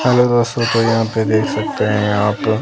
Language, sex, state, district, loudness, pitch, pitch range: Hindi, female, Himachal Pradesh, Shimla, -16 LUFS, 115 Hz, 105-120 Hz